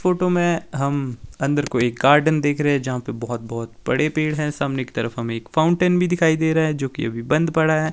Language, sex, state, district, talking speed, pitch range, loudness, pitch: Hindi, male, Himachal Pradesh, Shimla, 250 wpm, 125-160 Hz, -21 LUFS, 145 Hz